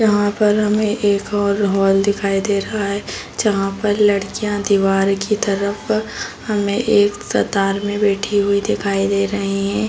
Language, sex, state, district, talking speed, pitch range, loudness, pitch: Hindi, female, Bihar, Saran, 165 wpm, 200-210 Hz, -18 LUFS, 205 Hz